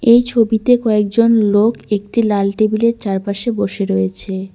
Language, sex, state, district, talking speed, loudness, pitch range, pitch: Bengali, female, West Bengal, Cooch Behar, 145 wpm, -15 LUFS, 200-230 Hz, 215 Hz